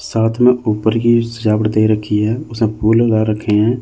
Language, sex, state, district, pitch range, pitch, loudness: Hindi, male, Chandigarh, Chandigarh, 110-115 Hz, 110 Hz, -15 LUFS